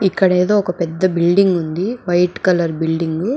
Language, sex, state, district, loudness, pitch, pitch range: Telugu, female, Andhra Pradesh, Chittoor, -16 LUFS, 180 Hz, 170-190 Hz